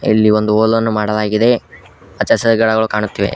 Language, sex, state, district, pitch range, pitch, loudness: Kannada, male, Karnataka, Koppal, 105-115 Hz, 110 Hz, -14 LUFS